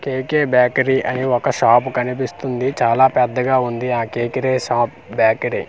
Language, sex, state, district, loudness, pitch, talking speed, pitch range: Telugu, male, Andhra Pradesh, Manyam, -17 LUFS, 125 Hz, 150 wpm, 120-130 Hz